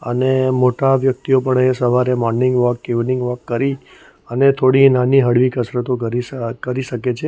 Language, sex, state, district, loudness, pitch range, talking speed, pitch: Gujarati, male, Gujarat, Valsad, -16 LUFS, 125-130 Hz, 175 wpm, 125 Hz